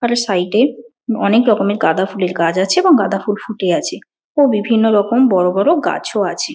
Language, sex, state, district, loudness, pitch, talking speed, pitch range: Bengali, female, West Bengal, Jalpaiguri, -15 LUFS, 220 Hz, 200 wpm, 195-245 Hz